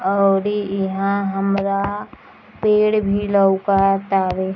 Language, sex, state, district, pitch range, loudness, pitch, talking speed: Bhojpuri, female, Bihar, East Champaran, 195-200 Hz, -18 LUFS, 195 Hz, 120 wpm